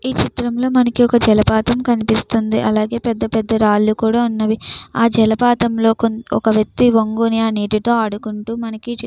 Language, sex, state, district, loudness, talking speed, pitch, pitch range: Telugu, female, Andhra Pradesh, Chittoor, -16 LUFS, 140 wpm, 225 Hz, 220-235 Hz